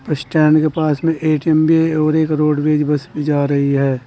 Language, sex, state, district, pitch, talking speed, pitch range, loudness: Hindi, male, Uttar Pradesh, Saharanpur, 155 Hz, 220 wpm, 145-155 Hz, -15 LUFS